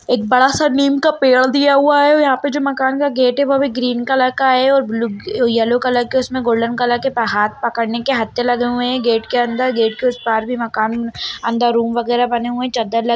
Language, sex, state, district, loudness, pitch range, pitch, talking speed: Hindi, female, Bihar, Lakhisarai, -16 LUFS, 235-265 Hz, 245 Hz, 250 wpm